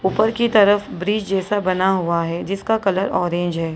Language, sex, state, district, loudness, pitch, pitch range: Hindi, female, Maharashtra, Mumbai Suburban, -19 LUFS, 190 Hz, 175-205 Hz